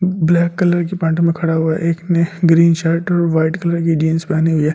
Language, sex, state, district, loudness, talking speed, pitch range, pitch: Hindi, male, Delhi, New Delhi, -15 LUFS, 240 wpm, 160-170 Hz, 170 Hz